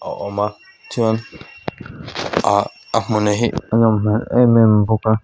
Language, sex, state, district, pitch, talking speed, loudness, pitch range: Mizo, female, Mizoram, Aizawl, 110 Hz, 160 wpm, -17 LUFS, 105-115 Hz